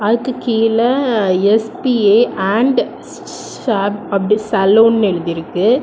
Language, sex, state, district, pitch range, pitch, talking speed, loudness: Tamil, female, Tamil Nadu, Kanyakumari, 200-235 Hz, 220 Hz, 80 wpm, -14 LUFS